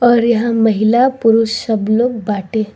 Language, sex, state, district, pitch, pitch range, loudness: Bhojpuri, female, Bihar, East Champaran, 225 Hz, 220-235 Hz, -14 LUFS